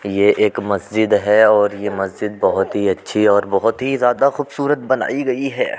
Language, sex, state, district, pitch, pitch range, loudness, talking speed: Hindi, male, Uttar Pradesh, Jyotiba Phule Nagar, 105 Hz, 105-130 Hz, -17 LUFS, 185 wpm